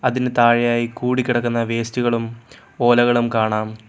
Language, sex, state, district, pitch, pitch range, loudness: Malayalam, male, Kerala, Kollam, 120 Hz, 115-120 Hz, -18 LUFS